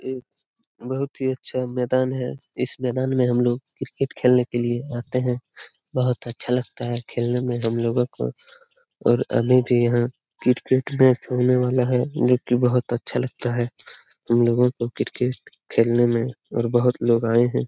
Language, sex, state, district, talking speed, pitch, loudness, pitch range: Hindi, male, Bihar, Lakhisarai, 175 wpm, 125 Hz, -22 LUFS, 120-130 Hz